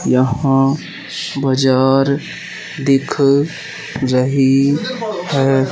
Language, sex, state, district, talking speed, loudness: Hindi, male, Madhya Pradesh, Katni, 50 wpm, -16 LUFS